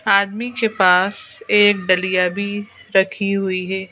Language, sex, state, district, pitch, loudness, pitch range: Hindi, female, Madhya Pradesh, Bhopal, 200 Hz, -17 LUFS, 185-205 Hz